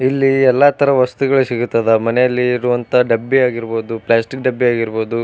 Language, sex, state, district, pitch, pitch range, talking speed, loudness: Kannada, male, Karnataka, Bijapur, 125 Hz, 115-130 Hz, 135 wpm, -15 LUFS